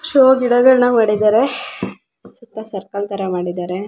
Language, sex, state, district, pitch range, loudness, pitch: Kannada, female, Karnataka, Belgaum, 195-250 Hz, -15 LUFS, 220 Hz